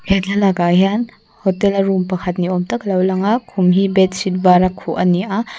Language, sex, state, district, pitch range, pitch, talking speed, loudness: Mizo, female, Mizoram, Aizawl, 180-195 Hz, 190 Hz, 235 wpm, -16 LUFS